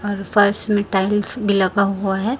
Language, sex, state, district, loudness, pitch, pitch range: Hindi, female, Chhattisgarh, Raipur, -18 LUFS, 200 Hz, 195-205 Hz